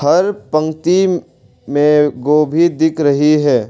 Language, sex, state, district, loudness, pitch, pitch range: Hindi, male, Arunachal Pradesh, Longding, -14 LUFS, 155 Hz, 150-170 Hz